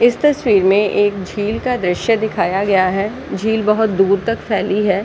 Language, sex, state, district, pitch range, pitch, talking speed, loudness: Hindi, female, Uttar Pradesh, Muzaffarnagar, 195-225 Hz, 205 Hz, 190 wpm, -16 LUFS